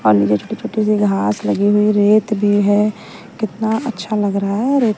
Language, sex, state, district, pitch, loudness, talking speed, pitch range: Hindi, female, Haryana, Jhajjar, 210 Hz, -16 LUFS, 195 wpm, 200-220 Hz